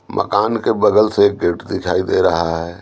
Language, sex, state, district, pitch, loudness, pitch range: Hindi, male, Bihar, Patna, 85 Hz, -16 LUFS, 85-100 Hz